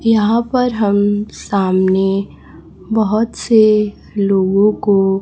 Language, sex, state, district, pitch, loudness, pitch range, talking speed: Hindi, female, Chhattisgarh, Raipur, 205 Hz, -15 LUFS, 195-220 Hz, 90 wpm